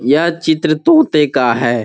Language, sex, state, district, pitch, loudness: Hindi, male, Bihar, Gopalganj, 150 Hz, -13 LUFS